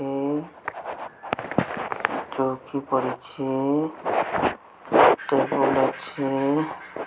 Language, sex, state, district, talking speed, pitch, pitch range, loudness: Odia, female, Odisha, Sambalpur, 40 wpm, 135 Hz, 135-150 Hz, -24 LUFS